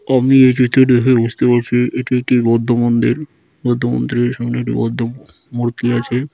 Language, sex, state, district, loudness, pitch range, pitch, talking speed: Bengali, male, West Bengal, Dakshin Dinajpur, -15 LUFS, 120-125 Hz, 120 Hz, 170 wpm